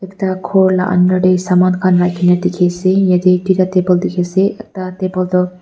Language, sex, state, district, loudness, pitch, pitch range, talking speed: Nagamese, female, Nagaland, Dimapur, -14 LUFS, 185 Hz, 180-185 Hz, 190 wpm